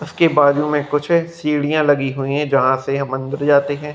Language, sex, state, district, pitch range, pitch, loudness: Hindi, male, Bihar, Gopalganj, 140-150 Hz, 145 Hz, -17 LUFS